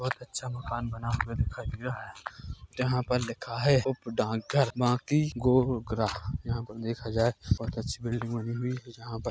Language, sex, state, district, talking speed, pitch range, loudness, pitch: Hindi, male, Chhattisgarh, Korba, 180 wpm, 115-125 Hz, -30 LUFS, 120 Hz